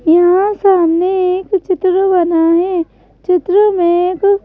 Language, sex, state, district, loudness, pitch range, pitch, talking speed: Hindi, female, Madhya Pradesh, Bhopal, -12 LUFS, 345-390 Hz, 365 Hz, 120 wpm